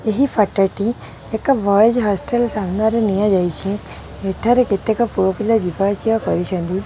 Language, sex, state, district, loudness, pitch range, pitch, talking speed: Odia, female, Odisha, Khordha, -18 LUFS, 195-225 Hz, 210 Hz, 130 wpm